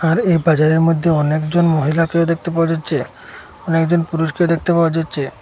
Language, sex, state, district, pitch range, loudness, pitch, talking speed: Bengali, male, Assam, Hailakandi, 155-170 Hz, -16 LUFS, 165 Hz, 155 wpm